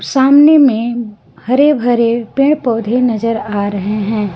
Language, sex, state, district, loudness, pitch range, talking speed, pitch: Hindi, female, Jharkhand, Garhwa, -12 LUFS, 210-265 Hz, 140 wpm, 235 Hz